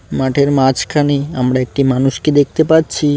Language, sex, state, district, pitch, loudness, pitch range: Bengali, male, West Bengal, Cooch Behar, 140 Hz, -14 LUFS, 130-150 Hz